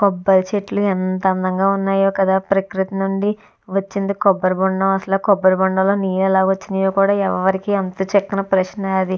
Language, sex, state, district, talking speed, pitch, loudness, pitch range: Telugu, female, Andhra Pradesh, Visakhapatnam, 145 wpm, 195 Hz, -18 LUFS, 190-195 Hz